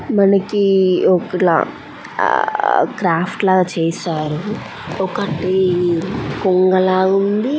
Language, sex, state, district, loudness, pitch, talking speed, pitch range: Telugu, female, Andhra Pradesh, Anantapur, -16 LUFS, 185 Hz, 70 wpm, 175-200 Hz